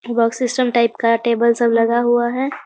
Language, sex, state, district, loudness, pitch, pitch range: Hindi, female, Bihar, Muzaffarpur, -17 LUFS, 235 Hz, 230-240 Hz